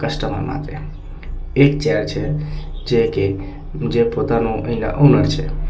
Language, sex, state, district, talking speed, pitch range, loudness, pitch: Gujarati, male, Gujarat, Valsad, 115 wpm, 110-150 Hz, -18 LUFS, 120 Hz